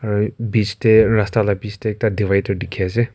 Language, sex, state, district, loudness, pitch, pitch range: Nagamese, male, Nagaland, Kohima, -18 LUFS, 110 Hz, 100-110 Hz